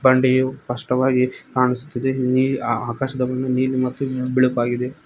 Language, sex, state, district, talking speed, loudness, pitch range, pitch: Kannada, male, Karnataka, Koppal, 85 wpm, -20 LUFS, 125-130 Hz, 130 Hz